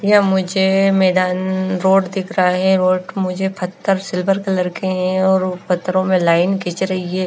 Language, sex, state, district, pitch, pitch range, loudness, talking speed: Hindi, female, Himachal Pradesh, Shimla, 185 Hz, 185-190 Hz, -17 LUFS, 175 wpm